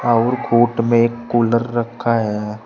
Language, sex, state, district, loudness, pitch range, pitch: Hindi, male, Uttar Pradesh, Saharanpur, -17 LUFS, 115-120 Hz, 115 Hz